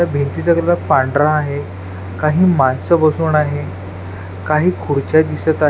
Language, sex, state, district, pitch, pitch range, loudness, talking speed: Marathi, male, Maharashtra, Washim, 145 Hz, 95-160 Hz, -15 LUFS, 135 wpm